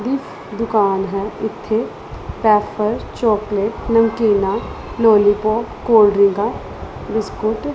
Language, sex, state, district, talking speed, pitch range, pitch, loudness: Punjabi, female, Punjab, Pathankot, 85 wpm, 205-225 Hz, 215 Hz, -17 LUFS